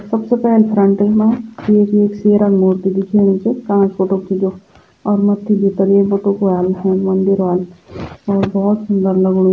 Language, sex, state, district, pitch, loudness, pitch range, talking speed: Garhwali, female, Uttarakhand, Tehri Garhwal, 200 Hz, -14 LUFS, 190-205 Hz, 170 wpm